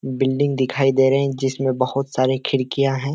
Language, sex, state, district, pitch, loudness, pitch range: Hindi, male, Bihar, Kishanganj, 135 Hz, -20 LUFS, 130-135 Hz